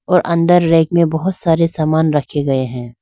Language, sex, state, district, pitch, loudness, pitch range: Hindi, female, Arunachal Pradesh, Lower Dibang Valley, 160 Hz, -15 LUFS, 145-170 Hz